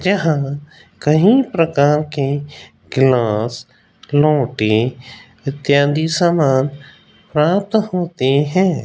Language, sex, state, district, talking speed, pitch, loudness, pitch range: Hindi, male, Rajasthan, Jaipur, 75 wpm, 145 Hz, -16 LUFS, 130-165 Hz